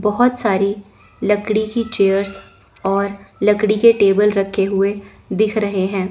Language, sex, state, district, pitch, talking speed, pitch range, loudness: Hindi, female, Chandigarh, Chandigarh, 200 Hz, 140 wpm, 195-215 Hz, -17 LUFS